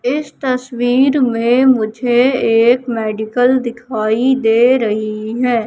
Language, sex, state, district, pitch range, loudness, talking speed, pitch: Hindi, female, Madhya Pradesh, Katni, 225-255 Hz, -14 LUFS, 105 wpm, 245 Hz